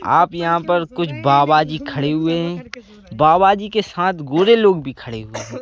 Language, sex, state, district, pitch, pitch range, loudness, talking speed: Hindi, male, Madhya Pradesh, Bhopal, 165 Hz, 140-185 Hz, -16 LUFS, 215 wpm